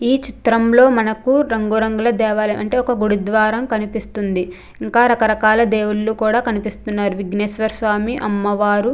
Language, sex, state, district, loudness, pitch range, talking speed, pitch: Telugu, female, Andhra Pradesh, Krishna, -17 LUFS, 210-235 Hz, 120 wpm, 220 Hz